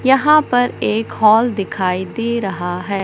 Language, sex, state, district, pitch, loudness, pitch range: Hindi, male, Madhya Pradesh, Katni, 220 Hz, -16 LUFS, 190-245 Hz